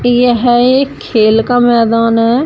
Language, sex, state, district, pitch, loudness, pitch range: Hindi, female, Uttar Pradesh, Shamli, 240 Hz, -10 LUFS, 230-245 Hz